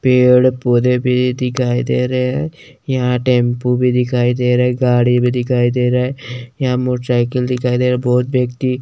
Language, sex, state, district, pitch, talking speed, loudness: Hindi, male, Chandigarh, Chandigarh, 125 Hz, 195 wpm, -15 LUFS